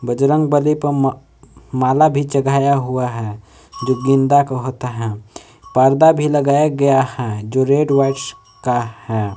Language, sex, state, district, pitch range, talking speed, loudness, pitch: Hindi, male, Jharkhand, Palamu, 120-140 Hz, 145 wpm, -16 LUFS, 135 Hz